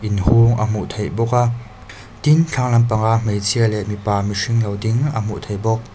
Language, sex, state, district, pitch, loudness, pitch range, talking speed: Mizo, male, Mizoram, Aizawl, 110 Hz, -18 LUFS, 105-115 Hz, 200 wpm